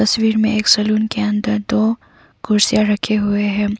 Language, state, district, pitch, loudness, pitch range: Hindi, Arunachal Pradesh, Papum Pare, 215 Hz, -16 LUFS, 210-220 Hz